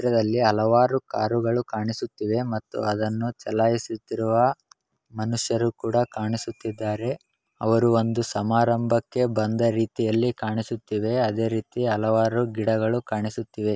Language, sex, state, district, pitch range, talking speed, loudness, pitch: Kannada, male, Karnataka, Bellary, 110-120 Hz, 85 wpm, -24 LUFS, 115 Hz